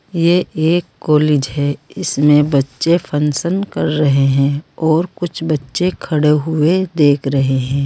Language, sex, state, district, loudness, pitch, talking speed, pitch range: Hindi, female, Uttar Pradesh, Saharanpur, -15 LUFS, 150 Hz, 135 wpm, 145-170 Hz